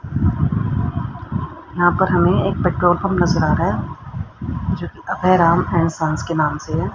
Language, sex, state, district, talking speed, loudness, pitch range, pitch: Hindi, female, Haryana, Rohtak, 175 wpm, -19 LUFS, 130-175 Hz, 160 Hz